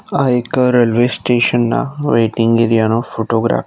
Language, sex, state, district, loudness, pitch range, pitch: Gujarati, male, Gujarat, Navsari, -14 LUFS, 115-125 Hz, 120 Hz